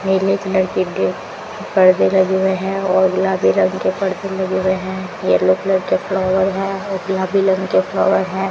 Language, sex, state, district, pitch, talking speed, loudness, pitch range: Hindi, female, Rajasthan, Bikaner, 190 Hz, 185 wpm, -17 LUFS, 185-190 Hz